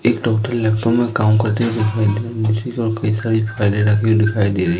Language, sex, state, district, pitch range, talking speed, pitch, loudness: Hindi, male, Madhya Pradesh, Katni, 110-115 Hz, 265 wpm, 110 Hz, -17 LUFS